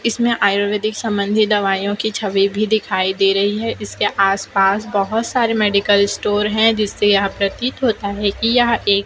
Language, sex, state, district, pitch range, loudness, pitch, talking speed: Hindi, female, Chhattisgarh, Raipur, 200-220 Hz, -17 LUFS, 205 Hz, 170 wpm